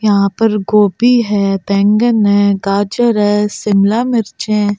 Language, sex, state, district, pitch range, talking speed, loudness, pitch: Hindi, female, Delhi, New Delhi, 200-225 Hz, 135 wpm, -13 LUFS, 210 Hz